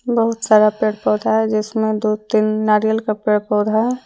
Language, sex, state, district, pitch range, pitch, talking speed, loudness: Hindi, female, Jharkhand, Deoghar, 215-220 Hz, 215 Hz, 175 wpm, -17 LUFS